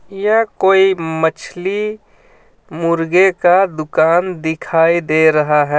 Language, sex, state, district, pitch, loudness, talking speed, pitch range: Hindi, male, Jharkhand, Ranchi, 170 Hz, -14 LUFS, 105 wpm, 160-195 Hz